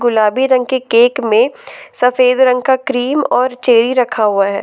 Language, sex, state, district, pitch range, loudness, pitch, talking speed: Hindi, female, Jharkhand, Ranchi, 230-260 Hz, -13 LUFS, 250 Hz, 180 wpm